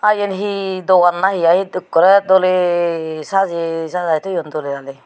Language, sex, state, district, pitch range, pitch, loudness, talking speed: Chakma, female, Tripura, Unakoti, 165-190 Hz, 180 Hz, -16 LUFS, 155 wpm